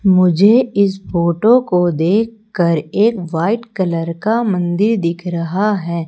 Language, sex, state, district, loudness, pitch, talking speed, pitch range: Hindi, female, Madhya Pradesh, Umaria, -15 LUFS, 190 Hz, 130 wpm, 170-215 Hz